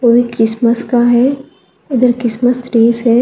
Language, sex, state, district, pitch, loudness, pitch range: Hindi, female, Telangana, Hyderabad, 240 Hz, -12 LUFS, 235-250 Hz